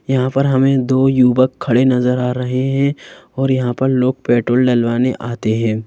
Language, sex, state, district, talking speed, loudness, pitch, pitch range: Hindi, female, Madhya Pradesh, Bhopal, 185 wpm, -15 LUFS, 130 Hz, 120-130 Hz